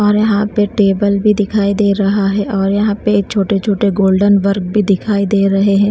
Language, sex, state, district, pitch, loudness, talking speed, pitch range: Hindi, female, Himachal Pradesh, Shimla, 200 Hz, -13 LUFS, 205 wpm, 200-210 Hz